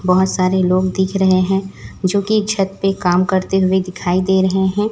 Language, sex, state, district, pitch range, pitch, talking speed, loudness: Hindi, female, Chhattisgarh, Raipur, 185-195 Hz, 190 Hz, 195 wpm, -16 LUFS